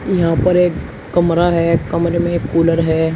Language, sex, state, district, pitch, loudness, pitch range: Hindi, male, Uttar Pradesh, Shamli, 170 Hz, -15 LUFS, 165-175 Hz